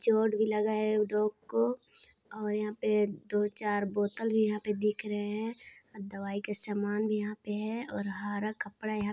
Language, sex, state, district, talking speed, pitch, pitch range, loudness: Hindi, female, Chhattisgarh, Sarguja, 190 wpm, 210 Hz, 205-215 Hz, -31 LUFS